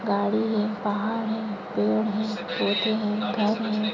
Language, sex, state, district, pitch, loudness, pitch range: Hindi, female, Maharashtra, Nagpur, 215 Hz, -26 LUFS, 205-220 Hz